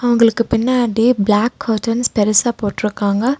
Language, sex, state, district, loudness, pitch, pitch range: Tamil, female, Tamil Nadu, Nilgiris, -16 LUFS, 230 Hz, 210-240 Hz